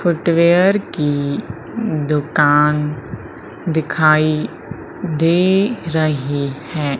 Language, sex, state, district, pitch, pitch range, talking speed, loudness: Hindi, female, Madhya Pradesh, Umaria, 155 Hz, 150-170 Hz, 60 wpm, -17 LUFS